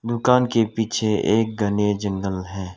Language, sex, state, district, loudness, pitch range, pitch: Hindi, male, Arunachal Pradesh, Lower Dibang Valley, -21 LUFS, 100-115 Hz, 105 Hz